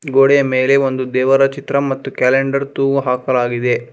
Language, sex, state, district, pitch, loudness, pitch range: Kannada, male, Karnataka, Bangalore, 135 Hz, -15 LUFS, 130-140 Hz